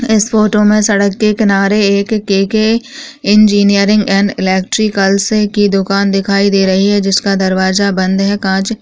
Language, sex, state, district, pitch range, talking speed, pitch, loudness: Hindi, female, Rajasthan, Churu, 195-215 Hz, 150 wpm, 200 Hz, -11 LUFS